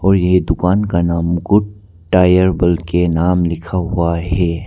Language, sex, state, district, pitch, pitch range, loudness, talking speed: Hindi, male, Arunachal Pradesh, Papum Pare, 90 Hz, 85-90 Hz, -15 LUFS, 165 wpm